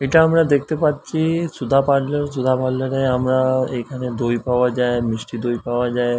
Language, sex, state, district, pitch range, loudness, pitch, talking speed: Bengali, male, West Bengal, Dakshin Dinajpur, 125-145 Hz, -19 LUFS, 130 Hz, 175 wpm